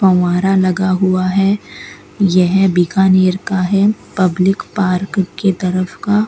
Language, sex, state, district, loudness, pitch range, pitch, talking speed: Hindi, female, Rajasthan, Bikaner, -14 LUFS, 185-195 Hz, 190 Hz, 125 wpm